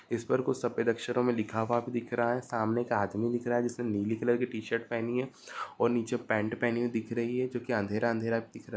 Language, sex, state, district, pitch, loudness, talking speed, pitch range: Marwari, male, Rajasthan, Nagaur, 120 Hz, -31 LUFS, 265 wpm, 115-120 Hz